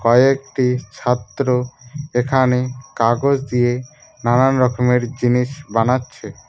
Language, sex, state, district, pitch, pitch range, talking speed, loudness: Bengali, male, West Bengal, Cooch Behar, 125 Hz, 120-130 Hz, 85 wpm, -18 LUFS